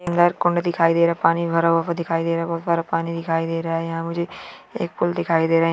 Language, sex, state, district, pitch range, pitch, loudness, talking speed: Marwari, female, Rajasthan, Churu, 165-170 Hz, 165 Hz, -21 LUFS, 295 wpm